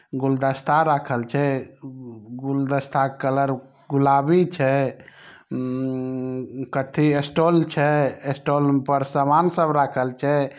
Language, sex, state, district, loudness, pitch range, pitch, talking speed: Maithili, male, Bihar, Samastipur, -22 LUFS, 135-145 Hz, 140 Hz, 110 wpm